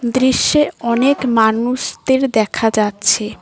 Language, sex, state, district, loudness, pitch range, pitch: Bengali, female, West Bengal, Cooch Behar, -15 LUFS, 220-260 Hz, 235 Hz